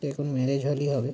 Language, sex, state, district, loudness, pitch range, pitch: Bengali, male, West Bengal, Kolkata, -27 LUFS, 135-145 Hz, 140 Hz